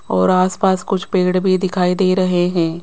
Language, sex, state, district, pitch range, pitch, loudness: Hindi, female, Rajasthan, Jaipur, 180-190 Hz, 185 Hz, -16 LUFS